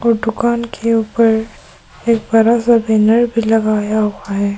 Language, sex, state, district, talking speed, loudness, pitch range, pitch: Hindi, female, Arunachal Pradesh, Papum Pare, 145 wpm, -14 LUFS, 215-230 Hz, 225 Hz